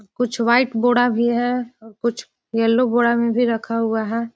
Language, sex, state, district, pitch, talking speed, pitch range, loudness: Hindi, female, Bihar, Jahanabad, 235 Hz, 190 wpm, 230-245 Hz, -19 LUFS